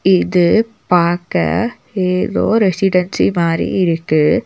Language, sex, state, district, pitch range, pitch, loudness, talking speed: Tamil, female, Tamil Nadu, Nilgiris, 175-220 Hz, 185 Hz, -15 LUFS, 80 wpm